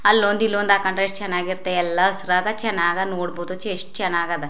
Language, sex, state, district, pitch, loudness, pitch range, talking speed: Kannada, female, Karnataka, Chamarajanagar, 185 Hz, -21 LUFS, 180-200 Hz, 160 wpm